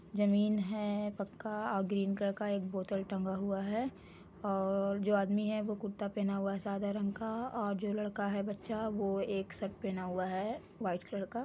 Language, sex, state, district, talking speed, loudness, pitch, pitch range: Hindi, female, Jharkhand, Sahebganj, 200 wpm, -36 LUFS, 200 Hz, 195-210 Hz